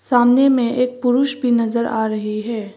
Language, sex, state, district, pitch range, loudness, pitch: Hindi, female, Arunachal Pradesh, Papum Pare, 220-250 Hz, -17 LUFS, 240 Hz